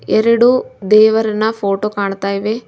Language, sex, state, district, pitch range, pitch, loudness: Kannada, female, Karnataka, Bidar, 200-225 Hz, 215 Hz, -14 LUFS